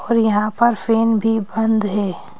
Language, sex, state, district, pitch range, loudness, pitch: Hindi, female, Madhya Pradesh, Bhopal, 210-225 Hz, -18 LUFS, 220 Hz